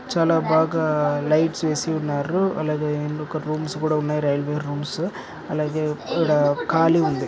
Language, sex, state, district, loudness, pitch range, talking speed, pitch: Telugu, male, Andhra Pradesh, Srikakulam, -22 LUFS, 150-160 Hz, 125 wpm, 155 Hz